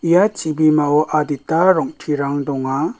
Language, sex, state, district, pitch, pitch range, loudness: Garo, male, Meghalaya, West Garo Hills, 155 Hz, 145-165 Hz, -17 LUFS